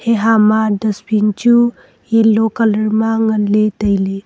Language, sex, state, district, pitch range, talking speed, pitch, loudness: Wancho, female, Arunachal Pradesh, Longding, 210-225 Hz, 125 wpm, 220 Hz, -14 LUFS